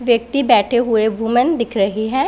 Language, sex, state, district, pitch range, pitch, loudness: Hindi, female, Punjab, Pathankot, 220-255 Hz, 235 Hz, -16 LUFS